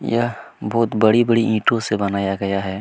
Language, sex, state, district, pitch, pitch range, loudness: Hindi, male, Chhattisgarh, Kabirdham, 110 Hz, 100-115 Hz, -19 LUFS